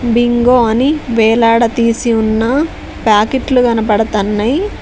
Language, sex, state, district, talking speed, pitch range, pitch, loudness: Telugu, female, Telangana, Mahabubabad, 75 wpm, 225-250 Hz, 235 Hz, -12 LUFS